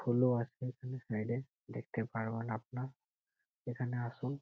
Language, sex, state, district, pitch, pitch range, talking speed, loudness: Bengali, male, West Bengal, Malda, 120 Hz, 115-130 Hz, 135 wpm, -39 LUFS